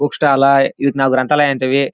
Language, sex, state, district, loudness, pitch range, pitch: Kannada, male, Karnataka, Bellary, -14 LUFS, 135-140 Hz, 140 Hz